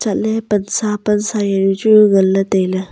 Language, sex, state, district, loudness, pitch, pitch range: Wancho, female, Arunachal Pradesh, Longding, -14 LUFS, 205 Hz, 195-215 Hz